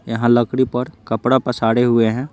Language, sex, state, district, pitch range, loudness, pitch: Hindi, male, Bihar, Patna, 115-125 Hz, -17 LUFS, 120 Hz